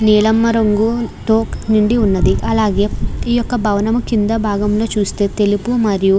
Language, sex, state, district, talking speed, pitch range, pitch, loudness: Telugu, female, Andhra Pradesh, Krishna, 145 wpm, 205-225 Hz, 215 Hz, -15 LUFS